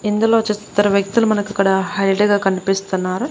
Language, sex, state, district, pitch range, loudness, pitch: Telugu, female, Andhra Pradesh, Annamaya, 195-210 Hz, -17 LUFS, 205 Hz